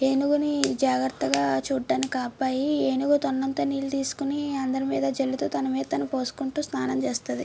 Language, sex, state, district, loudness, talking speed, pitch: Telugu, female, Andhra Pradesh, Srikakulam, -26 LUFS, 145 wpm, 265 Hz